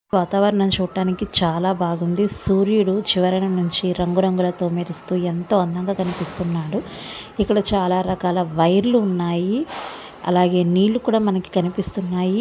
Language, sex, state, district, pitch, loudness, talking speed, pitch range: Telugu, female, Andhra Pradesh, Visakhapatnam, 185 Hz, -20 LUFS, 110 wpm, 180-200 Hz